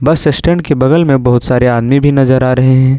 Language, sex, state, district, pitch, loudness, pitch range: Hindi, male, Jharkhand, Ranchi, 135 Hz, -10 LUFS, 130-150 Hz